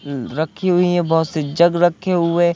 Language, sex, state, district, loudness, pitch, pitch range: Hindi, male, Jharkhand, Sahebganj, -17 LUFS, 170 Hz, 155-175 Hz